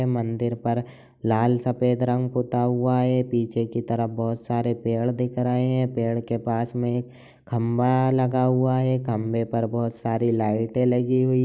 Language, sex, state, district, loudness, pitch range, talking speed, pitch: Hindi, male, Bihar, Darbhanga, -24 LUFS, 115-125 Hz, 175 wpm, 120 Hz